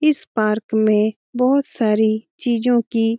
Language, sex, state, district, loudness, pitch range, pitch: Hindi, female, Bihar, Jamui, -19 LUFS, 220-250 Hz, 230 Hz